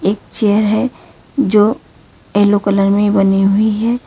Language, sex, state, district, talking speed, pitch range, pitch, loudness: Hindi, female, Karnataka, Bangalore, 145 wpm, 200-220 Hz, 210 Hz, -14 LUFS